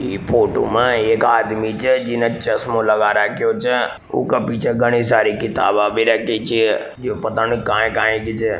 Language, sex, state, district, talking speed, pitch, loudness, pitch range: Marwari, male, Rajasthan, Nagaur, 180 wpm, 115 Hz, -17 LUFS, 110-120 Hz